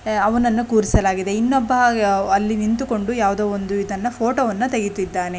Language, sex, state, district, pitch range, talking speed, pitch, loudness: Kannada, female, Karnataka, Shimoga, 200-240 Hz, 110 wpm, 215 Hz, -19 LUFS